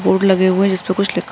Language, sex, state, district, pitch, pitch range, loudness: Hindi, female, Uttar Pradesh, Jyotiba Phule Nagar, 190 Hz, 185-195 Hz, -15 LUFS